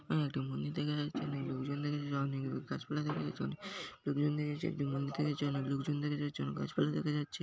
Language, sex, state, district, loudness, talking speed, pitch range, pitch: Bengali, male, West Bengal, Paschim Medinipur, -37 LUFS, 180 wpm, 135-150 Hz, 145 Hz